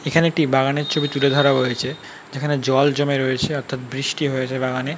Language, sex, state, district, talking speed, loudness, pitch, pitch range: Bengali, male, West Bengal, North 24 Parganas, 180 wpm, -20 LUFS, 140 Hz, 130-145 Hz